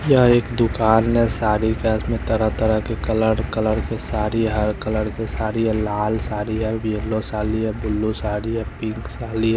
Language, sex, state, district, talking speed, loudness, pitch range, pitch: Hindi, male, Chandigarh, Chandigarh, 195 wpm, -21 LUFS, 110-115 Hz, 110 Hz